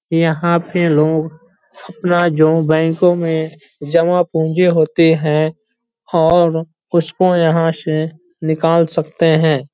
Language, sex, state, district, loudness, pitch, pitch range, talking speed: Hindi, male, Uttar Pradesh, Hamirpur, -15 LUFS, 165 Hz, 160-170 Hz, 110 wpm